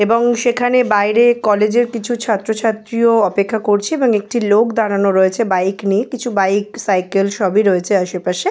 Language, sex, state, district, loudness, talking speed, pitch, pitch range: Bengali, female, West Bengal, Jalpaiguri, -15 LUFS, 155 wpm, 215 Hz, 200-235 Hz